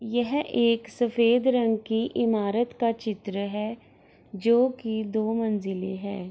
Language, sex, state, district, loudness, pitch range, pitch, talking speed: Hindi, female, Bihar, Gopalganj, -26 LUFS, 210-235 Hz, 225 Hz, 140 wpm